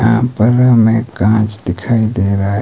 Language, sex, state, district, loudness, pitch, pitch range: Hindi, male, Himachal Pradesh, Shimla, -13 LUFS, 110 Hz, 100-115 Hz